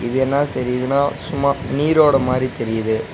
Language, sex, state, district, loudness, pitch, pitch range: Tamil, male, Tamil Nadu, Nilgiris, -18 LUFS, 135 Hz, 125-140 Hz